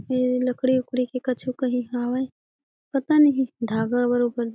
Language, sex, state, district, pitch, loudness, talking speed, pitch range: Chhattisgarhi, female, Chhattisgarh, Jashpur, 250 Hz, -23 LUFS, 145 wpm, 245-260 Hz